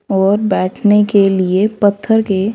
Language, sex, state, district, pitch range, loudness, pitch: Hindi, female, Haryana, Rohtak, 195-210 Hz, -13 LUFS, 200 Hz